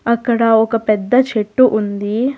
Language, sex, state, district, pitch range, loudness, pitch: Telugu, female, Telangana, Hyderabad, 215-245 Hz, -15 LUFS, 230 Hz